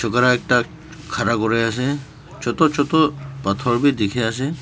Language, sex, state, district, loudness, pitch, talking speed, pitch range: Nagamese, male, Nagaland, Dimapur, -19 LUFS, 130 Hz, 130 wpm, 120-145 Hz